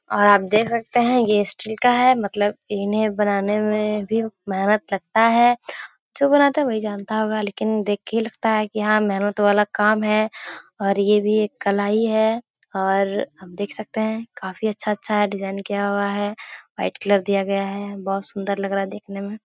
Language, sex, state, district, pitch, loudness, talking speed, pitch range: Hindi, female, Bihar, Darbhanga, 210 Hz, -21 LUFS, 195 wpm, 200-220 Hz